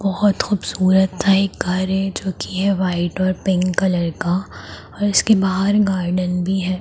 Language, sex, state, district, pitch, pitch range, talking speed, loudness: Hindi, female, Bihar, Darbhanga, 190 Hz, 185-195 Hz, 185 wpm, -18 LUFS